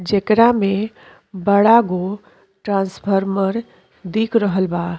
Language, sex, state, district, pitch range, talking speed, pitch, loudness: Bhojpuri, female, Uttar Pradesh, Deoria, 190-215 Hz, 95 wpm, 200 Hz, -17 LUFS